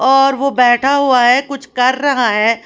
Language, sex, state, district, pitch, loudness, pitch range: Hindi, female, Haryana, Charkhi Dadri, 260 Hz, -12 LUFS, 245-275 Hz